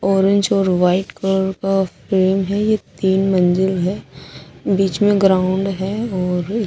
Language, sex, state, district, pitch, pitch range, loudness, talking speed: Hindi, female, Odisha, Sambalpur, 195 Hz, 185-195 Hz, -17 LUFS, 155 wpm